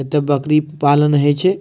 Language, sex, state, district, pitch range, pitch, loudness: Maithili, male, Bihar, Madhepura, 145-150 Hz, 145 Hz, -15 LUFS